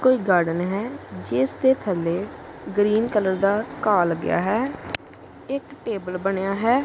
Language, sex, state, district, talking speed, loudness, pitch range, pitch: Punjabi, male, Punjab, Kapurthala, 140 wpm, -23 LUFS, 175-225 Hz, 200 Hz